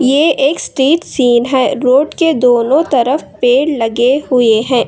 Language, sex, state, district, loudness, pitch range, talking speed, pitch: Hindi, female, Karnataka, Bangalore, -12 LUFS, 245-290 Hz, 160 wpm, 265 Hz